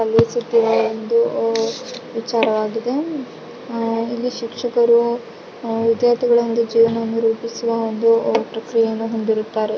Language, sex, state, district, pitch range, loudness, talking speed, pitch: Kannada, female, Karnataka, Raichur, 225-235 Hz, -19 LUFS, 65 wpm, 230 Hz